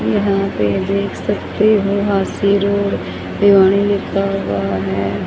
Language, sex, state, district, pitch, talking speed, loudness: Hindi, female, Haryana, Charkhi Dadri, 195 Hz, 125 wpm, -16 LUFS